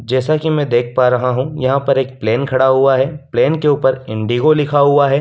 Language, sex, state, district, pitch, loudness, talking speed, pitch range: Hindi, male, Delhi, New Delhi, 135 Hz, -15 LUFS, 240 wpm, 125-145 Hz